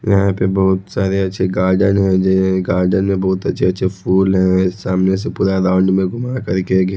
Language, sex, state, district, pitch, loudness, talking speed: Hindi, male, Odisha, Khordha, 95 Hz, -16 LUFS, 180 wpm